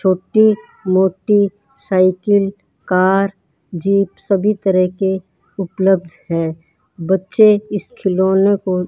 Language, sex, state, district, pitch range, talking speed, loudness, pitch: Hindi, male, Rajasthan, Bikaner, 185-200 Hz, 100 wpm, -16 LUFS, 190 Hz